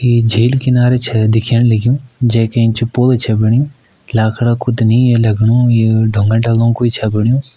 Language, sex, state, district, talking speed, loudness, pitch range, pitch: Kumaoni, male, Uttarakhand, Uttarkashi, 180 wpm, -13 LUFS, 110-125 Hz, 115 Hz